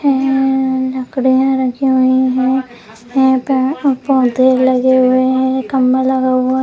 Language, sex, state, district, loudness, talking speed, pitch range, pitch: Hindi, female, Bihar, Saharsa, -13 LUFS, 125 wpm, 255-265 Hz, 260 Hz